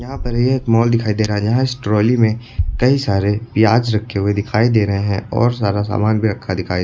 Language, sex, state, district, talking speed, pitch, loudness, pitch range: Hindi, male, Uttar Pradesh, Lucknow, 255 wpm, 110 Hz, -17 LUFS, 100-120 Hz